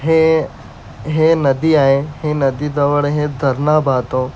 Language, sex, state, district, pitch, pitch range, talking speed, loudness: Marathi, male, Maharashtra, Aurangabad, 145 Hz, 135-155 Hz, 135 wpm, -15 LUFS